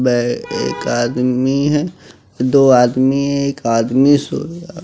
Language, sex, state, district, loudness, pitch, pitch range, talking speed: Hindi, male, Bihar, West Champaran, -15 LUFS, 135 Hz, 125-140 Hz, 135 wpm